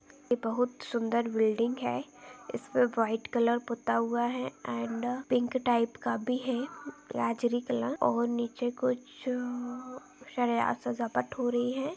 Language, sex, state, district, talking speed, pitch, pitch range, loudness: Hindi, female, Chhattisgarh, Balrampur, 150 wpm, 245 Hz, 235-250 Hz, -31 LUFS